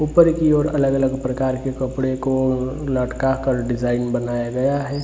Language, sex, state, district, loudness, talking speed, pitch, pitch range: Hindi, male, Bihar, Jamui, -20 LUFS, 180 wpm, 130 Hz, 130-140 Hz